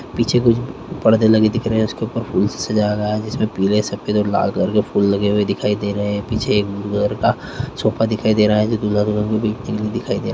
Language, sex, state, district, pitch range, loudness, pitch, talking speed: Hindi, male, Chhattisgarh, Korba, 105-110 Hz, -18 LUFS, 105 Hz, 265 wpm